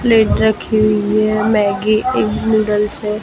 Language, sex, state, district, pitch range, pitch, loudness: Hindi, female, Maharashtra, Gondia, 210-220 Hz, 215 Hz, -15 LUFS